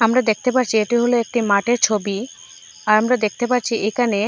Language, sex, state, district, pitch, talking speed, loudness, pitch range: Bengali, female, Assam, Hailakandi, 225 Hz, 180 wpm, -18 LUFS, 215-245 Hz